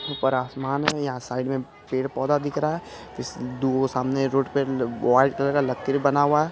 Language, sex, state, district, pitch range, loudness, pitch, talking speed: Hindi, male, Bihar, Araria, 130-145 Hz, -24 LUFS, 135 Hz, 200 wpm